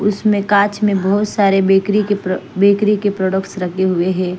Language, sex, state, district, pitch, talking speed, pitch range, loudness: Hindi, female, Punjab, Fazilka, 200 Hz, 175 wpm, 190-205 Hz, -15 LUFS